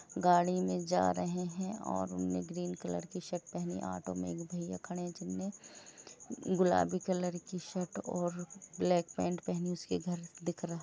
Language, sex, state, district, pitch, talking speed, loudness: Hindi, female, Jharkhand, Jamtara, 175 Hz, 185 wpm, -36 LUFS